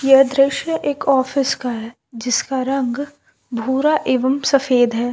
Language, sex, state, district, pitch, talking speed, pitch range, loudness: Hindi, female, Jharkhand, Palamu, 265 Hz, 140 wpm, 250-280 Hz, -18 LUFS